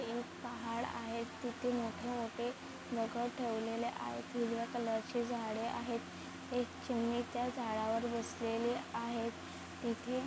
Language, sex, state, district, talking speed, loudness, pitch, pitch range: Marathi, female, Maharashtra, Chandrapur, 115 wpm, -40 LUFS, 235 Hz, 230-240 Hz